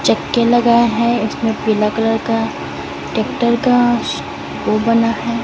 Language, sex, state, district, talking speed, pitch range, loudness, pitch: Hindi, female, Chhattisgarh, Raipur, 130 wpm, 225-235 Hz, -16 LUFS, 230 Hz